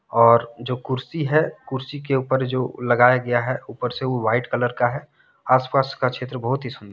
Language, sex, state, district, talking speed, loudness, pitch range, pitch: Hindi, male, Jharkhand, Deoghar, 215 wpm, -21 LUFS, 120-130 Hz, 125 Hz